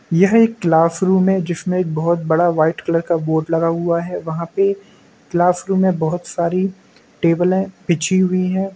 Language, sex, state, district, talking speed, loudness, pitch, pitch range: Hindi, male, Bihar, East Champaran, 170 wpm, -17 LUFS, 175 Hz, 165-190 Hz